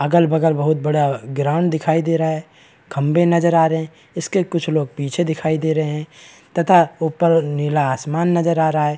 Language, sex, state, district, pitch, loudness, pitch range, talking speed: Hindi, male, Bihar, Kishanganj, 160 Hz, -18 LUFS, 150-170 Hz, 195 wpm